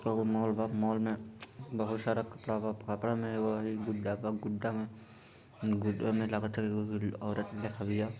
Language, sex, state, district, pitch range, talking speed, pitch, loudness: Bhojpuri, male, Bihar, Sitamarhi, 105-110 Hz, 160 wpm, 110 Hz, -35 LUFS